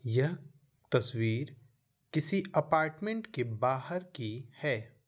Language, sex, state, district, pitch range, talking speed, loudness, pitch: Hindi, male, Bihar, Vaishali, 125-155 Hz, 95 wpm, -33 LUFS, 135 Hz